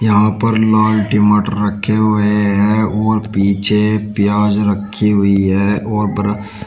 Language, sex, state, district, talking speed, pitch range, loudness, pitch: Hindi, male, Uttar Pradesh, Shamli, 135 wpm, 100-110 Hz, -14 LUFS, 105 Hz